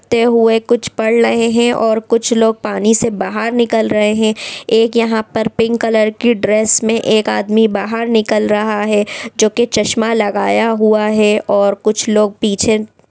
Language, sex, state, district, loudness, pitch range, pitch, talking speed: Hindi, female, Bihar, East Champaran, -13 LUFS, 215-230 Hz, 220 Hz, 175 wpm